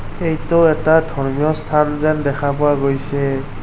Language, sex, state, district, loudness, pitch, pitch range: Assamese, male, Assam, Kamrup Metropolitan, -17 LUFS, 150 Hz, 140-155 Hz